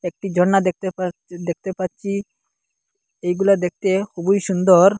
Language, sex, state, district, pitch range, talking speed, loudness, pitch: Bengali, male, Assam, Hailakandi, 180-200 Hz, 120 wpm, -20 LUFS, 190 Hz